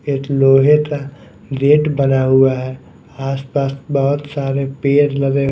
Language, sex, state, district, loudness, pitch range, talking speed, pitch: Hindi, male, Odisha, Nuapada, -15 LUFS, 135-140 Hz, 140 wpm, 135 Hz